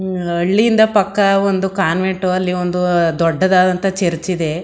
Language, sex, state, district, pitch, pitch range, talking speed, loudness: Kannada, female, Karnataka, Mysore, 185 Hz, 175-195 Hz, 155 wpm, -15 LUFS